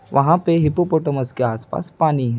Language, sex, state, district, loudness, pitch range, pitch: Hindi, male, Bihar, Gaya, -19 LUFS, 130-165 Hz, 145 Hz